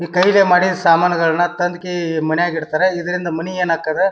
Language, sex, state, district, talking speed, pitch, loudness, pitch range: Kannada, male, Karnataka, Bijapur, 190 wpm, 175 Hz, -16 LUFS, 165-180 Hz